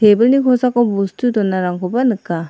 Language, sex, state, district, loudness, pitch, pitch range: Garo, female, Meghalaya, South Garo Hills, -16 LUFS, 215 Hz, 185-250 Hz